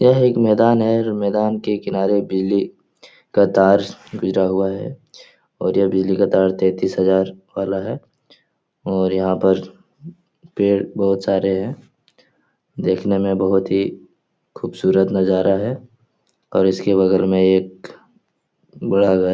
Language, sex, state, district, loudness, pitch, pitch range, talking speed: Hindi, male, Bihar, Jahanabad, -18 LUFS, 95 Hz, 95-105 Hz, 140 wpm